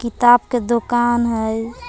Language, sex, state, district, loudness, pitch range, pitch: Magahi, female, Jharkhand, Palamu, -17 LUFS, 230-240 Hz, 240 Hz